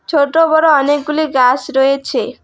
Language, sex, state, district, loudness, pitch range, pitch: Bengali, female, West Bengal, Alipurduar, -13 LUFS, 275-315 Hz, 290 Hz